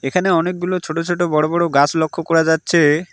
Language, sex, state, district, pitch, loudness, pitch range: Bengali, male, West Bengal, Alipurduar, 165 Hz, -17 LUFS, 155-175 Hz